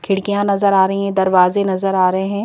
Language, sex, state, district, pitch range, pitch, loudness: Hindi, female, Madhya Pradesh, Bhopal, 190-200 Hz, 195 Hz, -15 LUFS